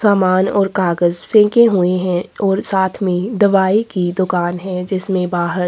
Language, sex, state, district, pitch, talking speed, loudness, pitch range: Hindi, female, Chhattisgarh, Korba, 185 Hz, 170 wpm, -15 LUFS, 180-200 Hz